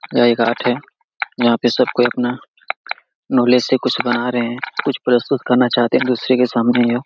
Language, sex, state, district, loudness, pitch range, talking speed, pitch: Hindi, male, Jharkhand, Jamtara, -17 LUFS, 120-125 Hz, 195 wpm, 120 Hz